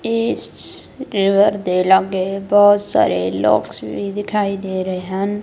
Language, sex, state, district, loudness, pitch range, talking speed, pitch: Punjabi, female, Punjab, Kapurthala, -17 LUFS, 190-205 Hz, 130 wpm, 200 Hz